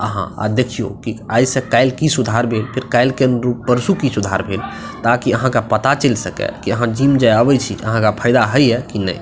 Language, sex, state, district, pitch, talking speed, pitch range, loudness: Maithili, male, Bihar, Madhepura, 120 Hz, 245 wpm, 110-130 Hz, -16 LUFS